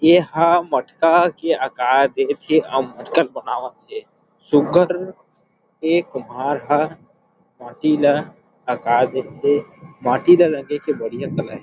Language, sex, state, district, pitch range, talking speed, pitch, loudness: Chhattisgarhi, male, Chhattisgarh, Rajnandgaon, 140-175 Hz, 140 wpm, 155 Hz, -19 LUFS